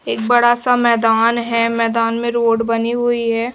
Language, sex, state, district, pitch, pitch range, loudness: Hindi, female, Maharashtra, Washim, 230 Hz, 230-240 Hz, -16 LUFS